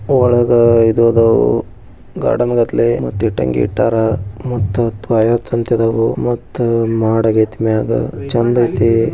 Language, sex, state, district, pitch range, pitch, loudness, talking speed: Kannada, male, Karnataka, Bijapur, 110-120 Hz, 115 Hz, -14 LUFS, 125 wpm